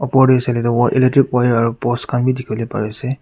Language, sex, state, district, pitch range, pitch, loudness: Nagamese, male, Nagaland, Kohima, 120-130 Hz, 125 Hz, -16 LUFS